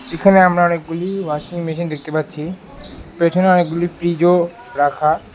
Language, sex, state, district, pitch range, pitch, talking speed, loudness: Bengali, male, West Bengal, Alipurduar, 160-180 Hz, 170 Hz, 125 wpm, -17 LUFS